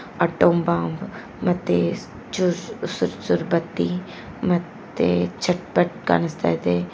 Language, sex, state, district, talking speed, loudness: Kannada, female, Karnataka, Koppal, 120 wpm, -23 LUFS